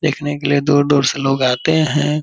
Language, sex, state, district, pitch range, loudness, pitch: Hindi, male, Bihar, Purnia, 140-150 Hz, -16 LUFS, 145 Hz